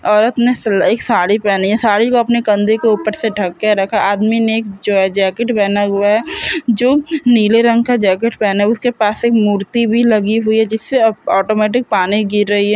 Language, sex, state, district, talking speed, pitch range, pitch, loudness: Hindi, female, Chhattisgarh, Korba, 220 wpm, 205-235 Hz, 220 Hz, -14 LUFS